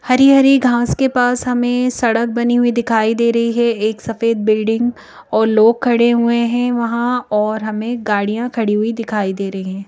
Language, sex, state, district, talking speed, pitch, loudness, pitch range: Hindi, female, Madhya Pradesh, Bhopal, 180 wpm, 235 Hz, -15 LUFS, 220-245 Hz